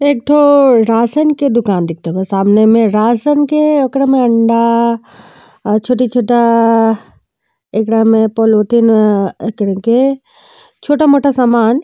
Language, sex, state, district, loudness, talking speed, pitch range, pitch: Bhojpuri, female, Uttar Pradesh, Deoria, -11 LUFS, 110 wpm, 220-275 Hz, 235 Hz